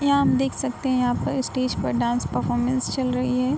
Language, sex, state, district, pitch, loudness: Hindi, female, Bihar, Gopalganj, 250 Hz, -23 LUFS